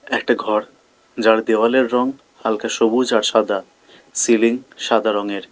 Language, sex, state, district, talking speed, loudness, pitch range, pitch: Bengali, male, West Bengal, Alipurduar, 130 wpm, -18 LUFS, 110-125 Hz, 115 Hz